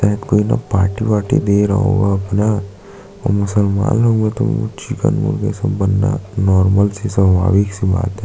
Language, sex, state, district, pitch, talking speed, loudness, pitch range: Hindi, male, Chhattisgarh, Sukma, 105 Hz, 175 wpm, -16 LUFS, 100-110 Hz